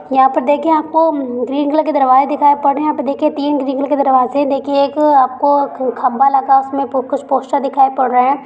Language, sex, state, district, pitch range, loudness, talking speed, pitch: Hindi, female, Bihar, Begusarai, 265-290 Hz, -14 LUFS, 200 wpm, 275 Hz